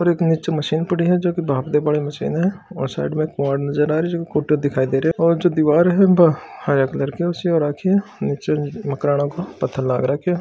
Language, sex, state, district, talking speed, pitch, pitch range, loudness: Marwari, male, Rajasthan, Churu, 240 wpm, 155 Hz, 140-175 Hz, -19 LUFS